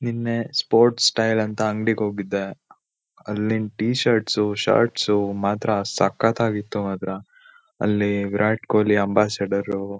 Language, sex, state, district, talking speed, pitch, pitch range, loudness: Kannada, male, Karnataka, Shimoga, 120 wpm, 105 Hz, 100-115 Hz, -22 LUFS